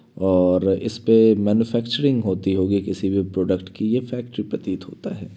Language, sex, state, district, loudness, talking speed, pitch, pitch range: Hindi, male, Uttar Pradesh, Varanasi, -21 LUFS, 155 wpm, 105 Hz, 95-115 Hz